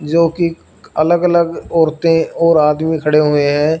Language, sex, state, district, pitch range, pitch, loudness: Hindi, male, Punjab, Fazilka, 150-170 Hz, 160 Hz, -14 LUFS